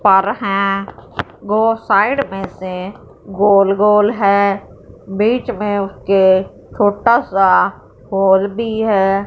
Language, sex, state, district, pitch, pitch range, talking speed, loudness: Hindi, female, Punjab, Fazilka, 195 Hz, 190-210 Hz, 110 wpm, -15 LUFS